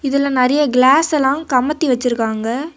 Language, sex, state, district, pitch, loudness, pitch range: Tamil, female, Tamil Nadu, Kanyakumari, 270 Hz, -15 LUFS, 250-295 Hz